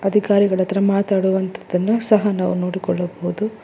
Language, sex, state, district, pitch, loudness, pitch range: Kannada, female, Karnataka, Bangalore, 195 Hz, -19 LUFS, 185-205 Hz